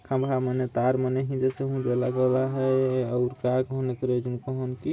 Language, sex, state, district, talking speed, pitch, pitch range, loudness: Sadri, male, Chhattisgarh, Jashpur, 205 wpm, 130 Hz, 125-130 Hz, -26 LUFS